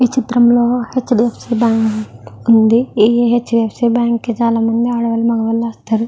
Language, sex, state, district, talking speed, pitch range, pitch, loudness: Telugu, female, Andhra Pradesh, Guntur, 140 wpm, 230-240 Hz, 235 Hz, -14 LUFS